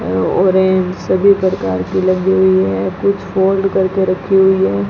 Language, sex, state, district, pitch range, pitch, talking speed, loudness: Hindi, female, Rajasthan, Bikaner, 125-190 Hz, 185 Hz, 160 wpm, -14 LUFS